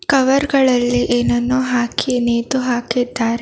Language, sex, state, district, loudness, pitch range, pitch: Kannada, female, Karnataka, Bangalore, -17 LUFS, 240-260 Hz, 245 Hz